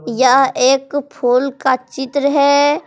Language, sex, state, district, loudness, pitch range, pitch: Hindi, female, Jharkhand, Palamu, -15 LUFS, 260-285 Hz, 270 Hz